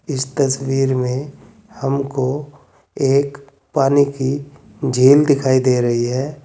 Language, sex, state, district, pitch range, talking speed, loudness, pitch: Hindi, male, Uttar Pradesh, Saharanpur, 130-140 Hz, 110 wpm, -17 LUFS, 135 Hz